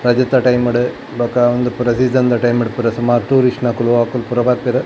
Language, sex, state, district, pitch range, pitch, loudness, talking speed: Tulu, male, Karnataka, Dakshina Kannada, 120-125 Hz, 120 Hz, -15 LUFS, 210 wpm